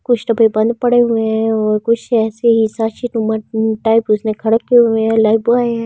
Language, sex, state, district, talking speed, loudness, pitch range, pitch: Hindi, female, Delhi, New Delhi, 175 wpm, -14 LUFS, 220-235 Hz, 225 Hz